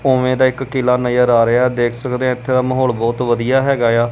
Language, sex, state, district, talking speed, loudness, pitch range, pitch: Punjabi, male, Punjab, Kapurthala, 250 wpm, -15 LUFS, 120-130 Hz, 125 Hz